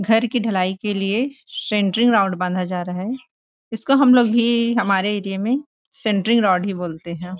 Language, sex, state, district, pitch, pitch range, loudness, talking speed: Hindi, female, Chhattisgarh, Rajnandgaon, 210 Hz, 190-235 Hz, -19 LUFS, 205 wpm